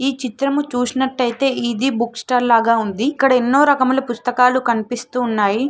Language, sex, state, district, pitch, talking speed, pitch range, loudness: Telugu, female, Telangana, Nalgonda, 250 Hz, 135 wpm, 235-265 Hz, -17 LUFS